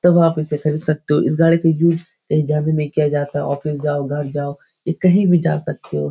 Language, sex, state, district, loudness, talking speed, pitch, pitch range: Hindi, male, Bihar, Jahanabad, -18 LUFS, 235 wpm, 150 Hz, 145-165 Hz